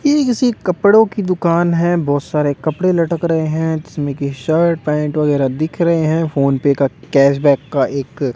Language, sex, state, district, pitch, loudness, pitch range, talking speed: Hindi, male, Delhi, New Delhi, 155 Hz, -16 LUFS, 140-170 Hz, 180 wpm